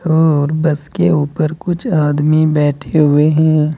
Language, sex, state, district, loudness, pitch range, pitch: Hindi, male, Uttar Pradesh, Saharanpur, -14 LUFS, 150-160 Hz, 155 Hz